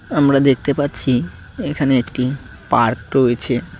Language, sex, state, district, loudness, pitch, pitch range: Bengali, male, West Bengal, Cooch Behar, -17 LUFS, 130 Hz, 115-140 Hz